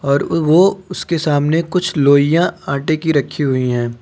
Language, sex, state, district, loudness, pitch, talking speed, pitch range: Hindi, male, Uttar Pradesh, Lucknow, -15 LUFS, 155 Hz, 165 wpm, 140-170 Hz